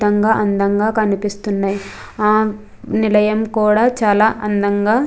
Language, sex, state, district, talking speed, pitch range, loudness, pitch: Telugu, female, Andhra Pradesh, Krishna, 105 wpm, 205-220 Hz, -16 LUFS, 210 Hz